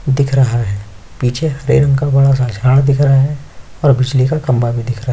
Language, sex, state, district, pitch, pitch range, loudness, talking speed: Hindi, male, Chhattisgarh, Sukma, 135 Hz, 125-140 Hz, -13 LUFS, 245 wpm